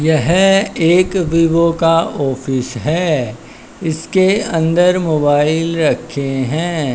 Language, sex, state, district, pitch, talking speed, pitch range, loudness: Hindi, male, Haryana, Charkhi Dadri, 165 Hz, 95 wpm, 145-175 Hz, -15 LUFS